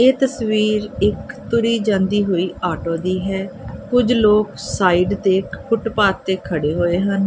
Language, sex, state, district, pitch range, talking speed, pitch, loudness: Punjabi, female, Punjab, Kapurthala, 185-220 Hz, 150 wpm, 195 Hz, -18 LUFS